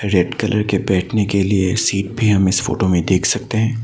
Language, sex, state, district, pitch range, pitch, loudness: Hindi, male, Assam, Sonitpur, 95-110 Hz, 100 Hz, -17 LUFS